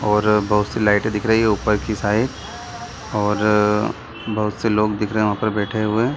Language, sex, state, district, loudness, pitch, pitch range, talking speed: Hindi, male, Bihar, Sitamarhi, -19 LUFS, 105 Hz, 105-110 Hz, 215 wpm